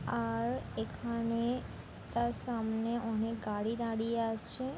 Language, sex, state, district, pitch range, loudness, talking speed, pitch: Bengali, female, West Bengal, Jhargram, 210-235 Hz, -35 LUFS, 100 wpm, 225 Hz